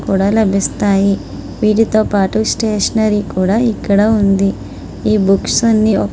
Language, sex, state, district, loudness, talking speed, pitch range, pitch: Telugu, female, Andhra Pradesh, Srikakulam, -14 LUFS, 115 wpm, 195-215 Hz, 205 Hz